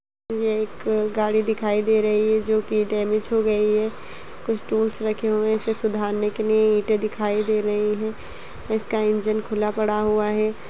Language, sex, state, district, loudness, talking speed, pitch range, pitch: Kumaoni, female, Uttarakhand, Uttarkashi, -22 LUFS, 185 wpm, 210-220 Hz, 215 Hz